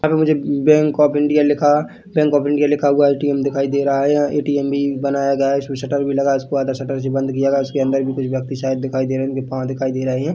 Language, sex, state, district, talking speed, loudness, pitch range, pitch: Hindi, male, Chhattisgarh, Bilaspur, 250 wpm, -18 LUFS, 135-145 Hz, 140 Hz